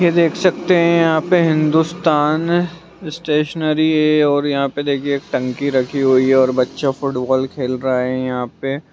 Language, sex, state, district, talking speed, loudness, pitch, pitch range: Hindi, male, Bihar, Jamui, 175 wpm, -17 LUFS, 150 Hz, 135-160 Hz